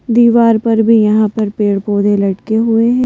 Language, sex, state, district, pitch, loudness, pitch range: Hindi, female, Madhya Pradesh, Bhopal, 220 Hz, -12 LUFS, 205-230 Hz